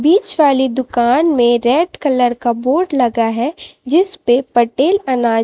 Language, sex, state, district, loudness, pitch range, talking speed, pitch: Hindi, female, Chhattisgarh, Raipur, -14 LUFS, 240-315 Hz, 145 wpm, 255 Hz